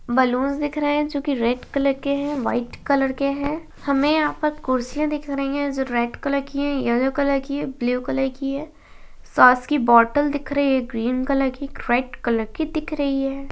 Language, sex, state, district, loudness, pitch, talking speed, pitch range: Hindi, female, Uttarakhand, Tehri Garhwal, -22 LUFS, 275 Hz, 215 wpm, 255-285 Hz